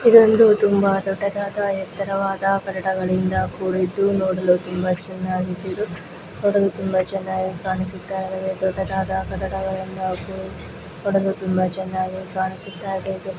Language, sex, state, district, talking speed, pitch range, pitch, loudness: Kannada, female, Karnataka, Raichur, 100 wpm, 185-195 Hz, 190 Hz, -22 LUFS